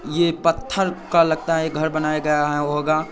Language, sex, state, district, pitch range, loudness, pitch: Hindi, male, Bihar, Saharsa, 150-165 Hz, -20 LUFS, 155 Hz